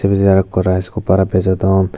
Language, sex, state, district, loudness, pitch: Chakma, male, Tripura, Dhalai, -15 LUFS, 95 Hz